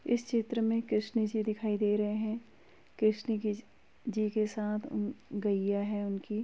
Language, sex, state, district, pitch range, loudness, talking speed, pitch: Hindi, female, Uttar Pradesh, Muzaffarnagar, 210-225 Hz, -33 LUFS, 160 wpm, 215 Hz